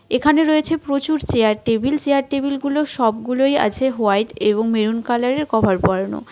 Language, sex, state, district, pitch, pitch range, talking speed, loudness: Bengali, female, West Bengal, Cooch Behar, 250 Hz, 220-285 Hz, 150 wpm, -18 LUFS